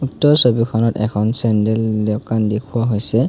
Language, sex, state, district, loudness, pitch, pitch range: Assamese, male, Assam, Kamrup Metropolitan, -16 LUFS, 110 Hz, 105-120 Hz